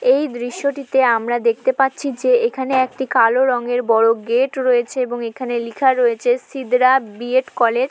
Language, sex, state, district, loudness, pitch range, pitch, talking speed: Bengali, female, West Bengal, Malda, -18 LUFS, 240-265 Hz, 250 Hz, 160 wpm